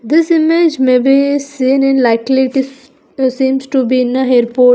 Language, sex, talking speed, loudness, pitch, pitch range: English, female, 190 wpm, -12 LUFS, 265 Hz, 255-280 Hz